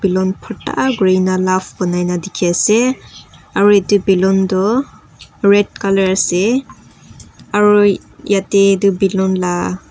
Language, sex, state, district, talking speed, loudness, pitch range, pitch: Nagamese, female, Nagaland, Kohima, 120 wpm, -14 LUFS, 185-205 Hz, 195 Hz